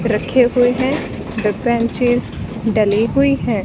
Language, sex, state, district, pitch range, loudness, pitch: Hindi, female, Haryana, Rohtak, 220-250 Hz, -17 LUFS, 235 Hz